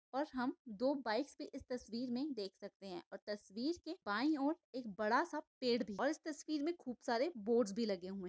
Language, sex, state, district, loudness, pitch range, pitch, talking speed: Hindi, female, Maharashtra, Aurangabad, -41 LUFS, 215-300 Hz, 250 Hz, 230 wpm